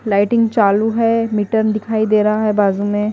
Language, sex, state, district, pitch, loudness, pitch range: Hindi, female, Chhattisgarh, Raipur, 215 Hz, -15 LUFS, 205-225 Hz